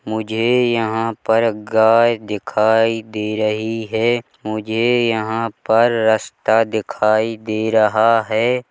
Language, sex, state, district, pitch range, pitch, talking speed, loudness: Hindi, male, Chhattisgarh, Bilaspur, 110-115 Hz, 110 Hz, 110 wpm, -17 LUFS